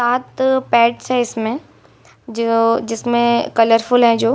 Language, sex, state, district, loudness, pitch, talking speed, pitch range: Hindi, female, Bihar, Saran, -16 LUFS, 235 Hz, 140 wpm, 230-245 Hz